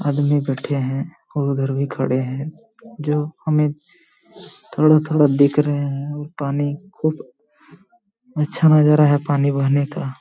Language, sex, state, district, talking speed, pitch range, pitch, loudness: Hindi, male, Jharkhand, Jamtara, 140 wpm, 140-155 Hz, 145 Hz, -19 LUFS